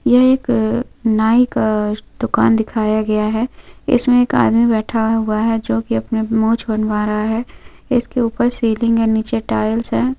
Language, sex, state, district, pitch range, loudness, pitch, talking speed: Hindi, female, Chhattisgarh, Bilaspur, 220-240 Hz, -16 LUFS, 225 Hz, 165 wpm